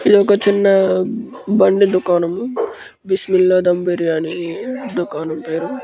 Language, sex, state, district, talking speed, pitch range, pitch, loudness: Telugu, male, Andhra Pradesh, Krishna, 105 wpm, 175-205 Hz, 190 Hz, -16 LUFS